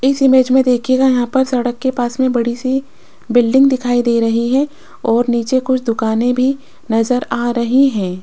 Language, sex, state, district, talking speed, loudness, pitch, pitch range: Hindi, female, Rajasthan, Jaipur, 190 wpm, -15 LUFS, 250 Hz, 235-265 Hz